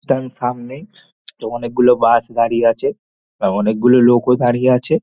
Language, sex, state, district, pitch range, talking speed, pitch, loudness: Bengali, male, West Bengal, Dakshin Dinajpur, 120-130 Hz, 180 wpm, 125 Hz, -15 LUFS